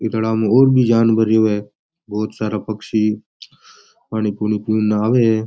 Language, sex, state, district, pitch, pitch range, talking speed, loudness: Rajasthani, male, Rajasthan, Nagaur, 110 Hz, 105-115 Hz, 120 wpm, -17 LUFS